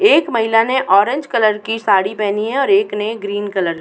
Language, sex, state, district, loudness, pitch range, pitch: Hindi, female, Uttar Pradesh, Muzaffarnagar, -16 LUFS, 205-260 Hz, 215 Hz